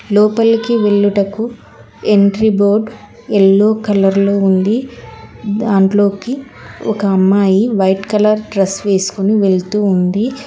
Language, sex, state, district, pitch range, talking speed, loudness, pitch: Telugu, female, Telangana, Hyderabad, 195-220 Hz, 95 wpm, -13 LUFS, 205 Hz